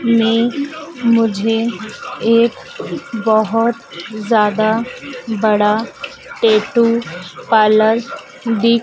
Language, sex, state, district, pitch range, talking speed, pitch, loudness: Hindi, female, Madhya Pradesh, Dhar, 220-240 Hz, 60 wpm, 230 Hz, -15 LUFS